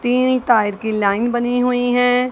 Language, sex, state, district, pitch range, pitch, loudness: Hindi, female, Punjab, Kapurthala, 225-250 Hz, 245 Hz, -17 LUFS